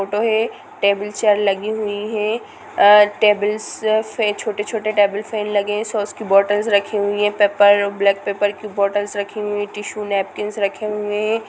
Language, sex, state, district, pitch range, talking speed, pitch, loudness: Hindi, female, Bihar, Gopalganj, 205-215 Hz, 180 wpm, 210 Hz, -18 LUFS